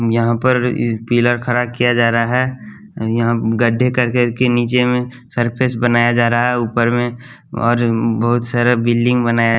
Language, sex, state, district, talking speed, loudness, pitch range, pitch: Hindi, male, Bihar, West Champaran, 190 wpm, -16 LUFS, 115-125 Hz, 120 Hz